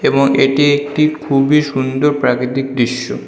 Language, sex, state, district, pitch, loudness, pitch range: Bengali, male, West Bengal, North 24 Parganas, 140 Hz, -14 LUFS, 130-145 Hz